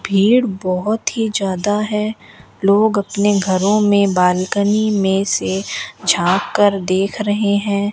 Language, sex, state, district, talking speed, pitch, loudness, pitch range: Hindi, female, Rajasthan, Bikaner, 130 wpm, 200 Hz, -16 LUFS, 190-210 Hz